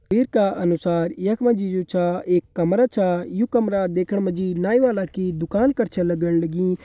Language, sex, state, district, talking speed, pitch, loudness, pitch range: Hindi, male, Uttarakhand, Uttarkashi, 200 wpm, 185 Hz, -21 LUFS, 175-210 Hz